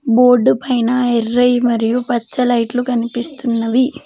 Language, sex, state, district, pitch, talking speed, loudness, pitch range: Telugu, female, Telangana, Mahabubabad, 245 Hz, 90 wpm, -15 LUFS, 235-250 Hz